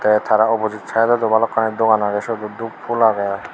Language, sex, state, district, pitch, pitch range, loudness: Chakma, male, Tripura, Unakoti, 110 Hz, 105-115 Hz, -18 LUFS